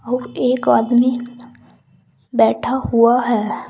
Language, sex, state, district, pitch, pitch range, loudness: Hindi, female, Uttar Pradesh, Saharanpur, 240 Hz, 235-250 Hz, -16 LUFS